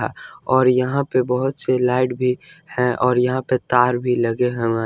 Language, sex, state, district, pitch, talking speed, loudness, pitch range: Hindi, male, Jharkhand, Ranchi, 125 Hz, 200 wpm, -19 LUFS, 125-130 Hz